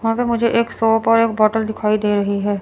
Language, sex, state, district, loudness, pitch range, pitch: Hindi, female, Chandigarh, Chandigarh, -17 LUFS, 210-230 Hz, 225 Hz